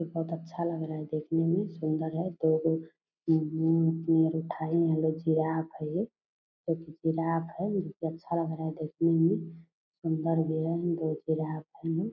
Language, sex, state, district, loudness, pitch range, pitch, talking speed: Hindi, female, Bihar, Purnia, -30 LUFS, 160-165 Hz, 165 Hz, 150 wpm